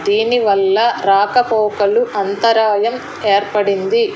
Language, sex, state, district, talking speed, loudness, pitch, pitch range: Telugu, female, Telangana, Hyderabad, 70 wpm, -15 LUFS, 210 Hz, 200-235 Hz